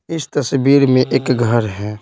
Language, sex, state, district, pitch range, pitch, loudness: Hindi, male, Bihar, Patna, 115-140 Hz, 130 Hz, -15 LUFS